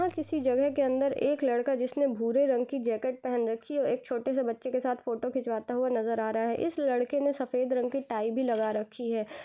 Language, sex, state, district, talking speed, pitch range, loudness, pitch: Hindi, female, Chhattisgarh, Jashpur, 240 wpm, 230-275 Hz, -30 LUFS, 255 Hz